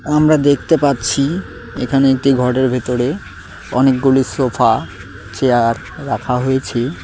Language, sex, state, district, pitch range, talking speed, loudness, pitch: Bengali, male, West Bengal, Cooch Behar, 120-135 Hz, 100 wpm, -15 LUFS, 130 Hz